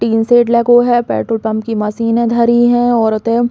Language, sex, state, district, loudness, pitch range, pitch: Bundeli, female, Uttar Pradesh, Hamirpur, -12 LUFS, 225-240 Hz, 235 Hz